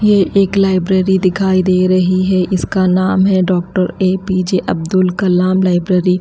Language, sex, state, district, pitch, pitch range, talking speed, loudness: Hindi, female, Haryana, Rohtak, 185 Hz, 185-190 Hz, 165 wpm, -13 LUFS